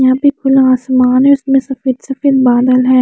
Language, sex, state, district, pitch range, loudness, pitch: Hindi, female, Chandigarh, Chandigarh, 255-270 Hz, -11 LUFS, 260 Hz